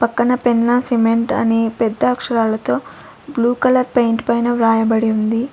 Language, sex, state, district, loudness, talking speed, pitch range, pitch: Telugu, female, Andhra Pradesh, Sri Satya Sai, -16 LUFS, 130 wpm, 225-245 Hz, 235 Hz